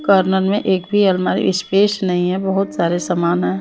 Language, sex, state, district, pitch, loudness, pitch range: Hindi, female, Maharashtra, Mumbai Suburban, 190 Hz, -17 LUFS, 180-195 Hz